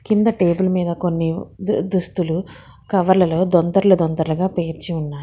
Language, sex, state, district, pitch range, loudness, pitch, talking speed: Telugu, female, Telangana, Hyderabad, 165-185 Hz, -19 LUFS, 175 Hz, 115 wpm